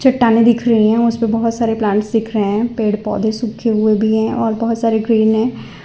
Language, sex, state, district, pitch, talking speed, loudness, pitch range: Hindi, female, Gujarat, Valsad, 225 Hz, 235 wpm, -15 LUFS, 215-230 Hz